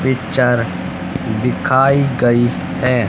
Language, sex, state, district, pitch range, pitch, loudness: Hindi, male, Haryana, Rohtak, 120-130 Hz, 125 Hz, -16 LUFS